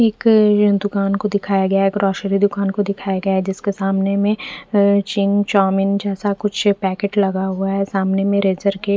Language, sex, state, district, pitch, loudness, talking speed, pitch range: Hindi, female, Punjab, Fazilka, 200 Hz, -18 LUFS, 180 wpm, 195-205 Hz